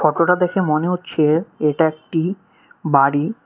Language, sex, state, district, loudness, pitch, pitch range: Bengali, male, West Bengal, Cooch Behar, -18 LUFS, 160 Hz, 155-180 Hz